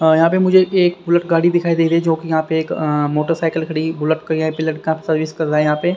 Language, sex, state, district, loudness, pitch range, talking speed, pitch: Hindi, male, Haryana, Rohtak, -17 LUFS, 155-170 Hz, 300 wpm, 160 Hz